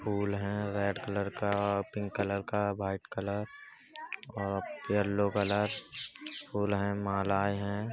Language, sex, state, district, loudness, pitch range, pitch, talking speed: Hindi, male, Uttar Pradesh, Budaun, -33 LUFS, 100-105 Hz, 100 Hz, 135 wpm